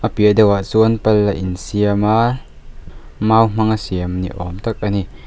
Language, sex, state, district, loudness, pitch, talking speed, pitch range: Mizo, male, Mizoram, Aizawl, -16 LUFS, 105 Hz, 180 wpm, 95-110 Hz